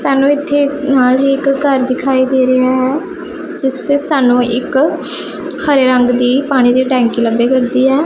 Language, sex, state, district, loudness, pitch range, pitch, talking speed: Punjabi, female, Punjab, Pathankot, -12 LUFS, 255-285 Hz, 270 Hz, 165 wpm